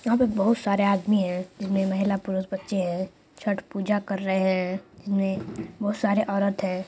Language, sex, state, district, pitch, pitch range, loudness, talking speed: Hindi, female, Bihar, Purnia, 195 Hz, 190-205 Hz, -26 LUFS, 185 wpm